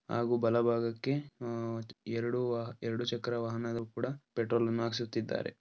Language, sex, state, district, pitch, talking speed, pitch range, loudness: Kannada, male, Karnataka, Dharwad, 115 Hz, 130 wpm, 115-120 Hz, -34 LUFS